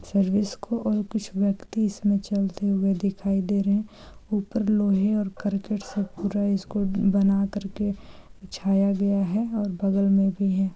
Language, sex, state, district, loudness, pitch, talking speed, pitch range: Hindi, female, Bihar, Saran, -25 LUFS, 200 Hz, 160 wpm, 195-205 Hz